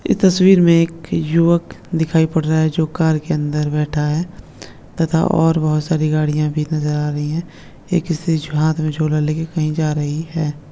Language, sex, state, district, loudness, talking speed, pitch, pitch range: Hindi, male, West Bengal, Kolkata, -17 LUFS, 200 wpm, 155 Hz, 150-165 Hz